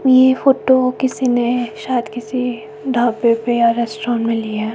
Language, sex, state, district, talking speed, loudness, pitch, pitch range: Hindi, female, Himachal Pradesh, Shimla, 165 wpm, -17 LUFS, 240 Hz, 230-255 Hz